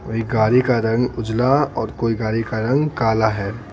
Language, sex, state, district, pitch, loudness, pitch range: Hindi, male, Bihar, Patna, 115 Hz, -19 LUFS, 110-125 Hz